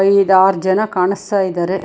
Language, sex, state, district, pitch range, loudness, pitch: Kannada, female, Karnataka, Bangalore, 185-200 Hz, -15 LUFS, 190 Hz